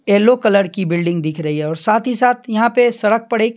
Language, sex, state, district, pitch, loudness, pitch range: Hindi, male, Bihar, Patna, 220 Hz, -15 LUFS, 170-240 Hz